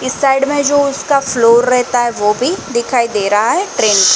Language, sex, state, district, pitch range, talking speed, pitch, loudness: Hindi, female, Chhattisgarh, Balrampur, 230-275 Hz, 230 wpm, 250 Hz, -13 LUFS